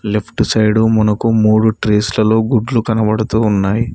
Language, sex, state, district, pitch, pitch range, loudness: Telugu, male, Telangana, Mahabubabad, 110 Hz, 105-110 Hz, -14 LUFS